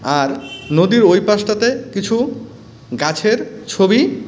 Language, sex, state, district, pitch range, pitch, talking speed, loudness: Bengali, male, West Bengal, Cooch Behar, 140-230 Hz, 200 Hz, 100 wpm, -16 LUFS